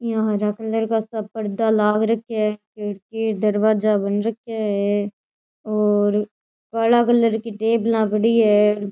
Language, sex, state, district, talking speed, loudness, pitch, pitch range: Rajasthani, female, Rajasthan, Churu, 135 wpm, -20 LUFS, 215 Hz, 210-225 Hz